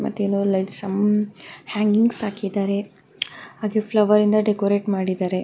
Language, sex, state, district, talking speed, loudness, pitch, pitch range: Kannada, female, Karnataka, Mysore, 130 wpm, -21 LUFS, 205 Hz, 200-210 Hz